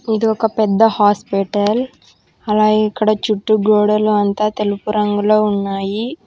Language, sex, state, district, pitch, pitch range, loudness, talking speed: Telugu, female, Telangana, Hyderabad, 210 Hz, 205-215 Hz, -16 LUFS, 115 wpm